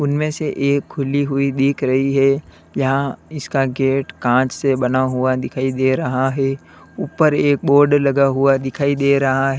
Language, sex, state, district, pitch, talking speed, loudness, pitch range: Hindi, male, Uttar Pradesh, Lalitpur, 135 Hz, 175 wpm, -17 LUFS, 130-140 Hz